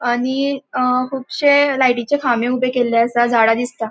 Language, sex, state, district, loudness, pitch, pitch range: Konkani, female, Goa, North and South Goa, -16 LUFS, 250 Hz, 240-270 Hz